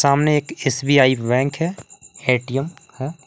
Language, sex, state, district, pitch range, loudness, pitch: Hindi, male, Jharkhand, Palamu, 130-150 Hz, -19 LUFS, 140 Hz